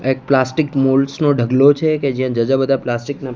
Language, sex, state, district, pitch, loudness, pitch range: Gujarati, male, Gujarat, Gandhinagar, 135 Hz, -16 LUFS, 130-145 Hz